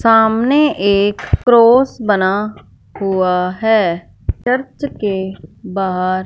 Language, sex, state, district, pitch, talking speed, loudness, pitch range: Hindi, female, Punjab, Fazilka, 205 Hz, 85 wpm, -15 LUFS, 190-235 Hz